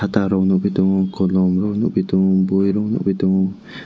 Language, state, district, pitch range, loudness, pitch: Kokborok, Tripura, West Tripura, 95-100 Hz, -18 LUFS, 95 Hz